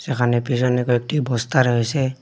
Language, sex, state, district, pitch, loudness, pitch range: Bengali, male, Assam, Hailakandi, 125 Hz, -20 LUFS, 120-130 Hz